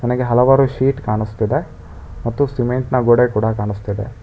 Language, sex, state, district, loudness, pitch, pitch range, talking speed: Kannada, male, Karnataka, Bangalore, -17 LUFS, 120 Hz, 105-125 Hz, 130 wpm